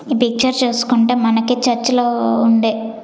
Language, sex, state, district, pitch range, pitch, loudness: Telugu, female, Andhra Pradesh, Sri Satya Sai, 225-245 Hz, 240 Hz, -15 LUFS